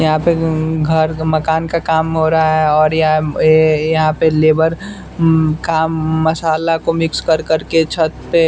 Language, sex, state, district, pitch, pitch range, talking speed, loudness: Hindi, male, Bihar, West Champaran, 160 Hz, 155-165 Hz, 205 wpm, -14 LUFS